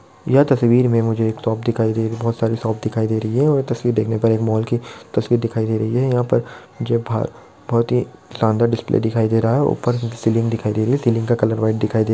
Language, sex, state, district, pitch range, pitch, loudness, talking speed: Hindi, male, Chhattisgarh, Bilaspur, 110-120 Hz, 115 Hz, -19 LUFS, 255 wpm